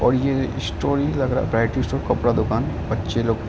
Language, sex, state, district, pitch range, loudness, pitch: Hindi, male, Uttar Pradesh, Ghazipur, 115-135 Hz, -22 LUFS, 125 Hz